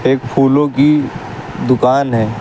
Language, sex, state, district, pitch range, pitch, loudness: Hindi, male, Uttar Pradesh, Lucknow, 125-145 Hz, 135 Hz, -13 LUFS